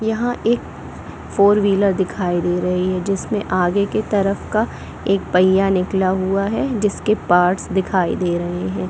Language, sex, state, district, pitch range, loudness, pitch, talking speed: Hindi, female, Chhattisgarh, Bilaspur, 180-205 Hz, -18 LUFS, 195 Hz, 160 wpm